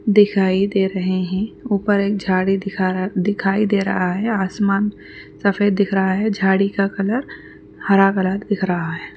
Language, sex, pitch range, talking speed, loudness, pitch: Urdu, female, 190-205 Hz, 150 wpm, -19 LUFS, 195 Hz